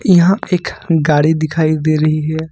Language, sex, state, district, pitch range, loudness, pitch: Hindi, male, Jharkhand, Ranchi, 155-175 Hz, -14 LUFS, 160 Hz